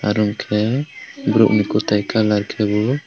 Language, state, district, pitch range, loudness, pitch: Kokborok, Tripura, West Tripura, 105-110 Hz, -18 LUFS, 105 Hz